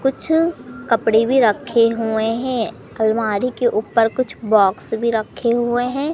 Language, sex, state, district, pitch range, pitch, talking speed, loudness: Hindi, male, Madhya Pradesh, Katni, 220-255 Hz, 230 Hz, 145 wpm, -18 LUFS